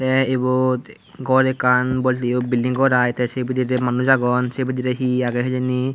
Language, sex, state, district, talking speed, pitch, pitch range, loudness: Chakma, male, Tripura, Unakoti, 190 wpm, 125 Hz, 125-130 Hz, -19 LUFS